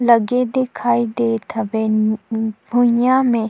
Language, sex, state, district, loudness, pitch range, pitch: Chhattisgarhi, female, Chhattisgarh, Sukma, -18 LUFS, 220-245 Hz, 235 Hz